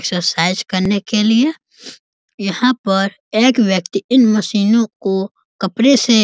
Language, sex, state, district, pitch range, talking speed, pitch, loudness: Hindi, male, Bihar, East Champaran, 195-230 Hz, 135 wpm, 210 Hz, -15 LUFS